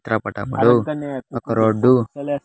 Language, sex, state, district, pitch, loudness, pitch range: Telugu, male, Andhra Pradesh, Sri Satya Sai, 120 Hz, -19 LUFS, 115-140 Hz